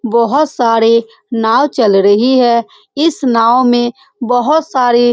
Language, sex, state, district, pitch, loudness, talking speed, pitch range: Hindi, female, Bihar, Saran, 240 Hz, -12 LUFS, 140 wpm, 230-265 Hz